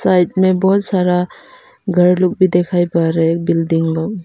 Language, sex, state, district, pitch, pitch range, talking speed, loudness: Hindi, female, Arunachal Pradesh, Papum Pare, 180 Hz, 170-185 Hz, 185 wpm, -15 LUFS